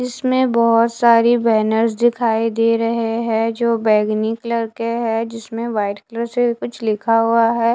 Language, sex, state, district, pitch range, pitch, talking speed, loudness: Hindi, female, Bihar, West Champaran, 225-235 Hz, 230 Hz, 165 wpm, -17 LUFS